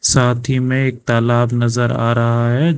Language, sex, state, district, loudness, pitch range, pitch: Hindi, male, Karnataka, Bangalore, -16 LUFS, 120-130 Hz, 120 Hz